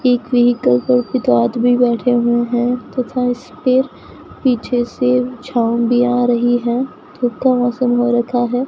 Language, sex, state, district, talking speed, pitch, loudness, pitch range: Hindi, female, Rajasthan, Bikaner, 150 wpm, 245 Hz, -16 LUFS, 240-250 Hz